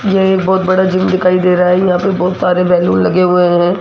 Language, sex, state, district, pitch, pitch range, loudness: Hindi, female, Rajasthan, Jaipur, 180 Hz, 180-185 Hz, -12 LUFS